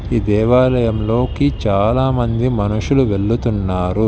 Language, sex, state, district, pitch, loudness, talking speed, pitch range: Telugu, male, Telangana, Hyderabad, 115 Hz, -16 LUFS, 75 wpm, 105-125 Hz